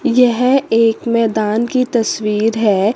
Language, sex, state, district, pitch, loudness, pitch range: Hindi, female, Chandigarh, Chandigarh, 230 Hz, -15 LUFS, 215-245 Hz